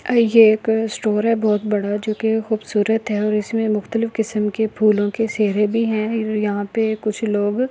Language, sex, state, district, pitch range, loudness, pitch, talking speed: Hindi, female, Delhi, New Delhi, 210-225 Hz, -19 LUFS, 215 Hz, 195 wpm